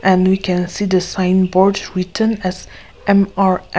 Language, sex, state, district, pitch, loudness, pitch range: English, female, Nagaland, Kohima, 185 Hz, -16 LUFS, 185-195 Hz